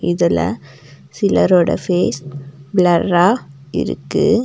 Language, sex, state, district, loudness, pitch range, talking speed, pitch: Tamil, female, Tamil Nadu, Nilgiris, -16 LUFS, 140-180 Hz, 65 wpm, 170 Hz